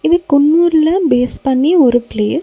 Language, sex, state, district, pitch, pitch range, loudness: Tamil, female, Tamil Nadu, Nilgiris, 295 Hz, 255-335 Hz, -12 LUFS